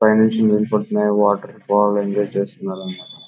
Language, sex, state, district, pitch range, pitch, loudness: Telugu, male, Karnataka, Bellary, 100-105 Hz, 105 Hz, -18 LUFS